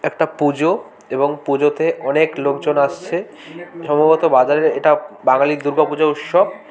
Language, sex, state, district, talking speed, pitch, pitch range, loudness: Bengali, male, West Bengal, Kolkata, 125 wpm, 150 Hz, 145-165 Hz, -17 LUFS